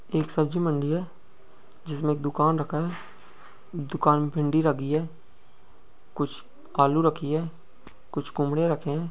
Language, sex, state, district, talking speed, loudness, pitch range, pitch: Hindi, male, Uttar Pradesh, Ghazipur, 145 wpm, -26 LUFS, 150-165 Hz, 155 Hz